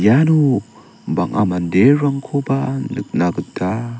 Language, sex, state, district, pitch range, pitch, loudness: Garo, male, Meghalaya, South Garo Hills, 95-140 Hz, 135 Hz, -17 LUFS